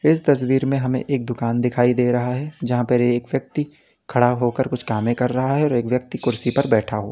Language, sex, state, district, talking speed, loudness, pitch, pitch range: Hindi, male, Uttar Pradesh, Lalitpur, 235 wpm, -20 LUFS, 125 Hz, 120-135 Hz